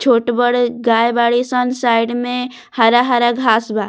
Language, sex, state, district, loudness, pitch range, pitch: Bhojpuri, female, Bihar, Muzaffarpur, -15 LUFS, 235-245 Hz, 240 Hz